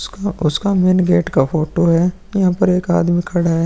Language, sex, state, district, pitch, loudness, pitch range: Hindi, male, Bihar, Vaishali, 175 Hz, -16 LUFS, 170-185 Hz